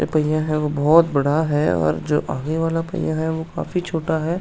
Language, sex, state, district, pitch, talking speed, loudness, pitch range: Hindi, male, Uttarakhand, Tehri Garhwal, 155 Hz, 230 wpm, -20 LUFS, 150-165 Hz